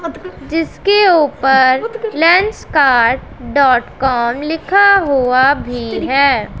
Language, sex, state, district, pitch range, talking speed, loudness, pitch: Hindi, female, Punjab, Pathankot, 265-370 Hz, 80 wpm, -13 LUFS, 295 Hz